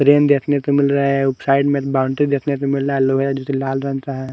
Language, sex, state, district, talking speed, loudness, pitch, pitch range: Hindi, male, Haryana, Charkhi Dadri, 265 wpm, -18 LUFS, 140 Hz, 135-140 Hz